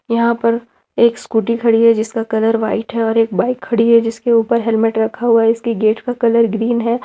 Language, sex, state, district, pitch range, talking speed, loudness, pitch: Hindi, female, Jharkhand, Ranchi, 225-235 Hz, 230 wpm, -15 LUFS, 230 Hz